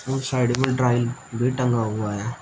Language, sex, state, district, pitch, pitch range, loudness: Hindi, male, Uttar Pradesh, Shamli, 125 Hz, 115-130 Hz, -23 LUFS